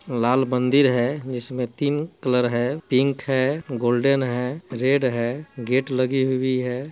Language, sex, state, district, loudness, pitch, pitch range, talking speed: Hindi, male, Bihar, Muzaffarpur, -22 LUFS, 130 Hz, 125-135 Hz, 145 wpm